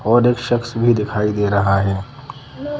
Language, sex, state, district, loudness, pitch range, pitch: Hindi, female, Madhya Pradesh, Bhopal, -18 LUFS, 105-125 Hz, 120 Hz